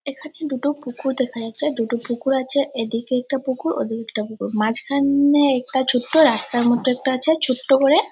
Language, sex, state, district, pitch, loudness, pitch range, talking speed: Bengali, female, West Bengal, Dakshin Dinajpur, 260 Hz, -20 LUFS, 240-285 Hz, 170 wpm